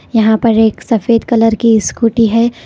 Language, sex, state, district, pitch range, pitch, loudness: Hindi, female, Karnataka, Koppal, 225-230 Hz, 225 Hz, -11 LUFS